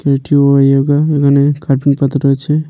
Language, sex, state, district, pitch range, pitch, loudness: Bengali, male, West Bengal, Paschim Medinipur, 140-145 Hz, 140 Hz, -12 LUFS